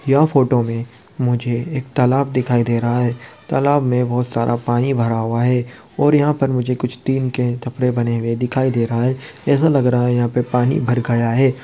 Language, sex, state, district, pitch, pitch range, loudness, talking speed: Hindi, male, Bihar, Kishanganj, 125 Hz, 120-135 Hz, -18 LUFS, 215 wpm